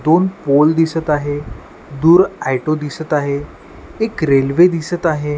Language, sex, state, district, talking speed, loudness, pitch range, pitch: Marathi, male, Maharashtra, Washim, 135 wpm, -16 LUFS, 145-165 Hz, 155 Hz